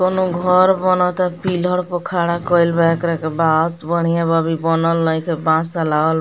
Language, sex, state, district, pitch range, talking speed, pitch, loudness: Bhojpuri, female, Bihar, Muzaffarpur, 165-180 Hz, 195 wpm, 170 Hz, -17 LUFS